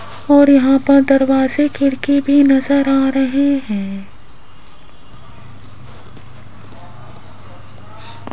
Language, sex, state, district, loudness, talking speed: Hindi, female, Rajasthan, Jaipur, -13 LUFS, 70 wpm